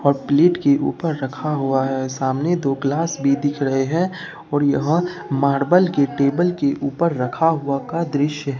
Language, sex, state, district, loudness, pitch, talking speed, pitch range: Hindi, male, Bihar, Katihar, -20 LUFS, 140 Hz, 180 wpm, 140-165 Hz